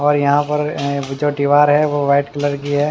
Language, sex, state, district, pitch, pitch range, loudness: Hindi, male, Haryana, Charkhi Dadri, 145 Hz, 140-145 Hz, -16 LUFS